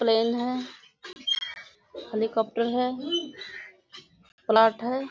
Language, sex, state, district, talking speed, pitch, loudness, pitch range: Hindi, female, Bihar, Kishanganj, 70 wpm, 240 Hz, -26 LUFS, 225-255 Hz